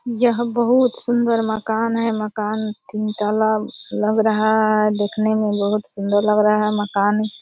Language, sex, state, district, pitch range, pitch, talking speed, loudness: Hindi, female, Bihar, Purnia, 210-225 Hz, 215 Hz, 160 wpm, -19 LUFS